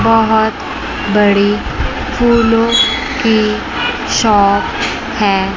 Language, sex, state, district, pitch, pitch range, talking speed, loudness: Hindi, male, Chandigarh, Chandigarh, 220 Hz, 210-235 Hz, 65 wpm, -13 LUFS